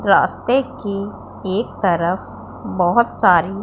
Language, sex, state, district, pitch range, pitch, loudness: Hindi, female, Punjab, Pathankot, 180-215 Hz, 195 Hz, -18 LUFS